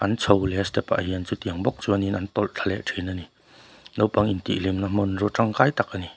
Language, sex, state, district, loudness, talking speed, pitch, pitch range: Mizo, male, Mizoram, Aizawl, -24 LUFS, 245 wpm, 100 Hz, 95-105 Hz